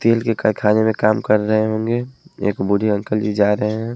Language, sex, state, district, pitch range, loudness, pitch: Hindi, male, Haryana, Jhajjar, 105-115 Hz, -18 LUFS, 110 Hz